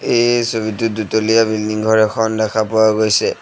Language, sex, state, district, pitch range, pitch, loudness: Assamese, male, Assam, Sonitpur, 110-115 Hz, 110 Hz, -15 LUFS